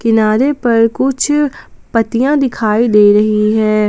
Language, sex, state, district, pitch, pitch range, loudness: Hindi, female, Jharkhand, Palamu, 230 Hz, 215-260 Hz, -12 LUFS